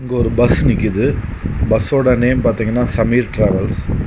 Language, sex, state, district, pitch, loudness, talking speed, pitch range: Tamil, male, Tamil Nadu, Kanyakumari, 115 Hz, -15 LUFS, 135 wpm, 105-125 Hz